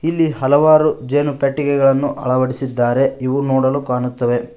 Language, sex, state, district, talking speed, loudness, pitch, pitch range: Kannada, male, Karnataka, Koppal, 90 wpm, -16 LUFS, 135 Hz, 130-145 Hz